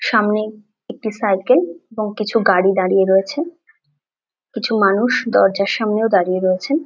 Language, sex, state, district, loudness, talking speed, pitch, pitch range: Bengali, female, West Bengal, Dakshin Dinajpur, -17 LUFS, 130 wpm, 215 Hz, 190-230 Hz